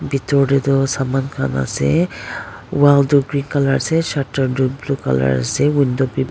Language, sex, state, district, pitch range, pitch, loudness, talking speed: Nagamese, female, Nagaland, Dimapur, 130-140 Hz, 135 Hz, -17 LUFS, 170 wpm